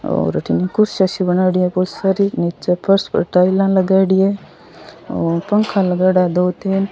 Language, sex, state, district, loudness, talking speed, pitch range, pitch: Rajasthani, female, Rajasthan, Churu, -16 LUFS, 175 wpm, 180-195 Hz, 190 Hz